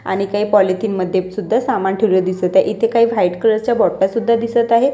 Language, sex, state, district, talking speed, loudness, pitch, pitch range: Marathi, female, Maharashtra, Washim, 205 wpm, -16 LUFS, 210 Hz, 190-230 Hz